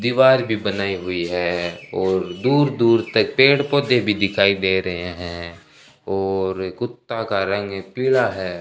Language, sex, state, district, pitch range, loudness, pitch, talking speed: Hindi, male, Rajasthan, Bikaner, 90-120 Hz, -20 LUFS, 100 Hz, 155 wpm